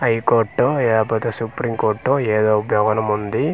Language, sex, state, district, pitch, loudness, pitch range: Telugu, male, Andhra Pradesh, Manyam, 110 Hz, -18 LUFS, 110-115 Hz